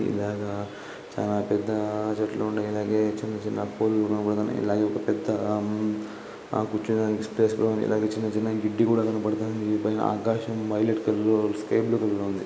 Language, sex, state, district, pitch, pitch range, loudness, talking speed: Telugu, male, Andhra Pradesh, Guntur, 105 Hz, 105-110 Hz, -26 LUFS, 160 wpm